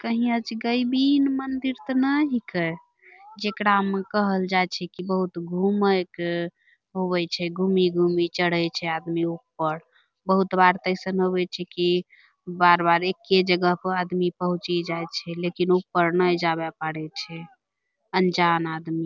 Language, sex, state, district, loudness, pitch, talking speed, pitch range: Angika, female, Bihar, Bhagalpur, -24 LUFS, 180 Hz, 140 wpm, 170-195 Hz